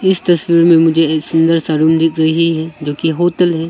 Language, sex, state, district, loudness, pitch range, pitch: Hindi, male, Arunachal Pradesh, Longding, -13 LUFS, 160-170 Hz, 165 Hz